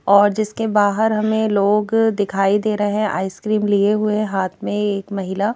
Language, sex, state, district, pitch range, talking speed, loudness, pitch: Hindi, female, Madhya Pradesh, Bhopal, 200-215 Hz, 160 wpm, -18 LUFS, 205 Hz